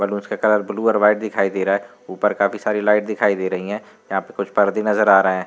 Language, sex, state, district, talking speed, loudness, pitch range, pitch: Hindi, male, Uttar Pradesh, Varanasi, 285 wpm, -19 LUFS, 100-105 Hz, 105 Hz